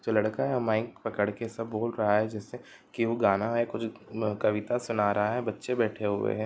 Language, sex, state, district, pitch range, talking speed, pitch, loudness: Hindi, male, Bihar, Gopalganj, 105-115 Hz, 195 wpm, 110 Hz, -29 LUFS